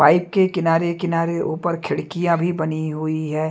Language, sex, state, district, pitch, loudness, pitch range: Hindi, male, Chhattisgarh, Raipur, 165 Hz, -21 LUFS, 155-175 Hz